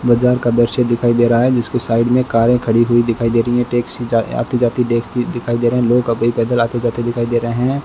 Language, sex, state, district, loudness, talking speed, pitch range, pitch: Hindi, male, Rajasthan, Bikaner, -15 LUFS, 260 wpm, 115-120 Hz, 120 Hz